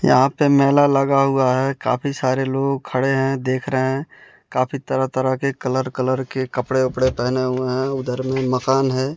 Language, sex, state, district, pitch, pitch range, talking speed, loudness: Hindi, male, Bihar, West Champaran, 130 Hz, 130-135 Hz, 185 wpm, -19 LUFS